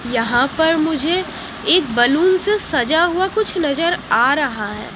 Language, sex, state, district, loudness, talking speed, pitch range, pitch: Hindi, female, Haryana, Jhajjar, -17 LUFS, 155 wpm, 280-365 Hz, 325 Hz